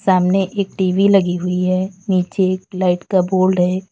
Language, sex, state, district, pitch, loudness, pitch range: Hindi, female, Uttar Pradesh, Lalitpur, 185 Hz, -17 LUFS, 180-190 Hz